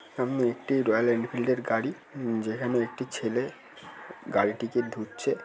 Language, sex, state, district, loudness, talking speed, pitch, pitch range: Bengali, male, West Bengal, Kolkata, -29 LUFS, 110 wpm, 120 Hz, 115-125 Hz